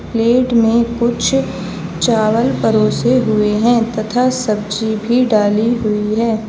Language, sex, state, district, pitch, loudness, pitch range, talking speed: Hindi, female, Uttar Pradesh, Lalitpur, 225 Hz, -15 LUFS, 215-235 Hz, 120 wpm